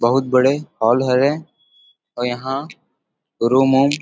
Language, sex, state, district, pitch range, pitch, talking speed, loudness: Chhattisgarhi, male, Chhattisgarh, Rajnandgaon, 125-140 Hz, 130 Hz, 135 wpm, -18 LUFS